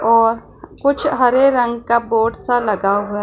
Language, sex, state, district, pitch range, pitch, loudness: Hindi, female, Punjab, Pathankot, 225-250 Hz, 235 Hz, -16 LUFS